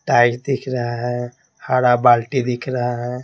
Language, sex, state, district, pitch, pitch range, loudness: Hindi, male, Bihar, Patna, 120 Hz, 120-125 Hz, -19 LUFS